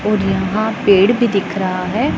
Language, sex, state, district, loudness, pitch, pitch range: Hindi, female, Punjab, Pathankot, -15 LUFS, 205 Hz, 190-215 Hz